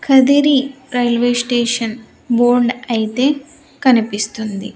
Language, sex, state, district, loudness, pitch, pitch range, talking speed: Telugu, female, Andhra Pradesh, Sri Satya Sai, -16 LUFS, 245 Hz, 235-270 Hz, 75 wpm